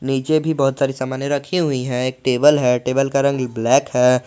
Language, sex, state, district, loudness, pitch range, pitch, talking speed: Hindi, male, Jharkhand, Garhwa, -18 LUFS, 125-140 Hz, 135 Hz, 225 wpm